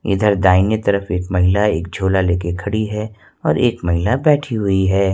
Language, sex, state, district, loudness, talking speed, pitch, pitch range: Hindi, male, Jharkhand, Ranchi, -17 LUFS, 185 wpm, 100 Hz, 90-105 Hz